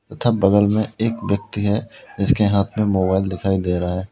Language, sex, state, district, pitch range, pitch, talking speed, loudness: Hindi, male, Uttar Pradesh, Lalitpur, 95-110 Hz, 100 Hz, 205 wpm, -19 LUFS